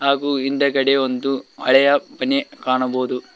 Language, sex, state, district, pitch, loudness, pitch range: Kannada, male, Karnataka, Koppal, 135 Hz, -19 LUFS, 130-140 Hz